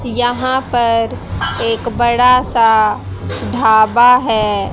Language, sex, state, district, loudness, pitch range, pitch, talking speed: Hindi, female, Haryana, Rohtak, -13 LUFS, 215-245 Hz, 230 Hz, 90 wpm